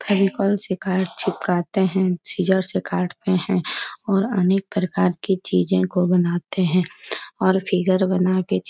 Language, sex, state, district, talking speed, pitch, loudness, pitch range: Hindi, female, Uttar Pradesh, Etah, 160 wpm, 185 Hz, -21 LUFS, 180-195 Hz